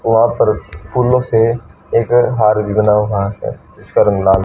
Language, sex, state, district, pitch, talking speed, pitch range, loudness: Hindi, female, Haryana, Charkhi Dadri, 105 Hz, 175 wpm, 100-115 Hz, -14 LUFS